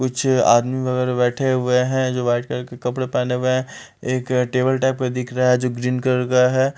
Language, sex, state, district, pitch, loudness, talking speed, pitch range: Hindi, male, Punjab, Fazilka, 125 Hz, -19 LUFS, 230 wpm, 125-130 Hz